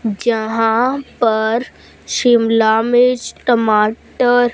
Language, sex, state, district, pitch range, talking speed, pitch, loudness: Hindi, female, Punjab, Fazilka, 220-245 Hz, 65 wpm, 230 Hz, -15 LUFS